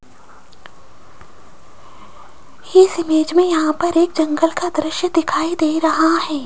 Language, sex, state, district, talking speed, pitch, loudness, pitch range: Hindi, female, Rajasthan, Jaipur, 120 wpm, 330 Hz, -16 LUFS, 315-345 Hz